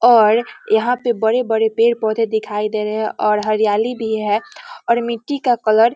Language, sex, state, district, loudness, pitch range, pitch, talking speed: Hindi, female, Bihar, Muzaffarpur, -17 LUFS, 215-235 Hz, 225 Hz, 180 wpm